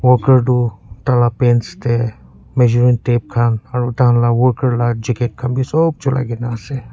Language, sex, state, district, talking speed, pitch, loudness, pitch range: Nagamese, male, Nagaland, Kohima, 155 wpm, 120 Hz, -16 LUFS, 120-125 Hz